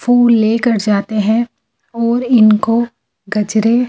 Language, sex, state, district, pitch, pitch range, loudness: Hindi, female, Delhi, New Delhi, 230 Hz, 215-240 Hz, -13 LUFS